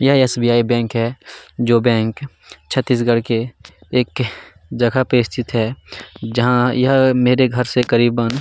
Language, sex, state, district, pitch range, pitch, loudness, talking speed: Hindi, male, Chhattisgarh, Kabirdham, 115-125 Hz, 120 Hz, -17 LUFS, 155 wpm